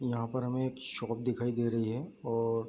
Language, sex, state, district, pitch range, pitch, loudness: Hindi, male, Bihar, Bhagalpur, 115-125 Hz, 120 Hz, -34 LUFS